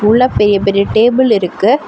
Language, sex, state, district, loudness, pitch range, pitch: Tamil, female, Tamil Nadu, Chennai, -11 LUFS, 200-245 Hz, 215 Hz